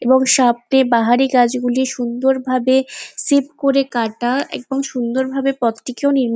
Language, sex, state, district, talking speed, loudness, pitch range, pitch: Bengali, female, West Bengal, Jalpaiguri, 160 wpm, -17 LUFS, 245-270 Hz, 260 Hz